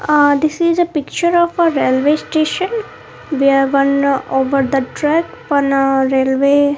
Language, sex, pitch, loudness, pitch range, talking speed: English, female, 285 Hz, -15 LUFS, 275-315 Hz, 160 wpm